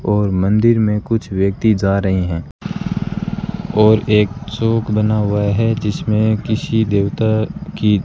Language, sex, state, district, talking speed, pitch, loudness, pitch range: Hindi, male, Rajasthan, Bikaner, 135 wpm, 110 Hz, -17 LUFS, 100-115 Hz